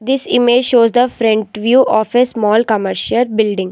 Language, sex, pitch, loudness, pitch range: English, female, 230 Hz, -13 LUFS, 215-245 Hz